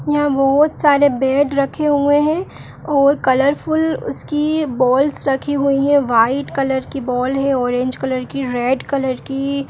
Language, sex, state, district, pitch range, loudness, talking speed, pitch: Kumaoni, female, Uttarakhand, Uttarkashi, 265-290 Hz, -17 LUFS, 160 wpm, 275 Hz